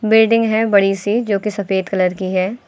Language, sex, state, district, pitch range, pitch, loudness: Hindi, female, Uttar Pradesh, Lucknow, 190-220 Hz, 200 Hz, -16 LUFS